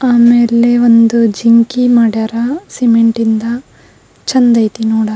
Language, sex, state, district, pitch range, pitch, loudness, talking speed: Kannada, female, Karnataka, Belgaum, 225-240 Hz, 235 Hz, -11 LUFS, 105 wpm